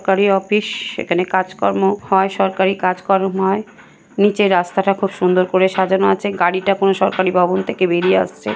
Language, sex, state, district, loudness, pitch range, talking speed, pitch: Bengali, female, West Bengal, North 24 Parganas, -16 LUFS, 180-195 Hz, 155 wpm, 190 Hz